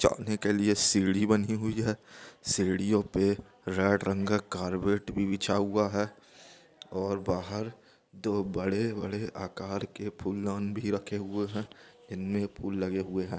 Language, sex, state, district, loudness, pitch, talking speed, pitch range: Hindi, male, Andhra Pradesh, Anantapur, -30 LUFS, 100 Hz, 150 wpm, 95-105 Hz